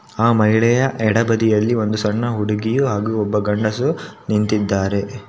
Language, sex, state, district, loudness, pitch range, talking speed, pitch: Kannada, male, Karnataka, Shimoga, -18 LUFS, 105-115 Hz, 125 wpm, 110 Hz